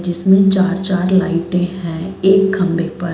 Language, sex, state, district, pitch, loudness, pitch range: Hindi, female, Chhattisgarh, Bilaspur, 185 Hz, -15 LUFS, 175-190 Hz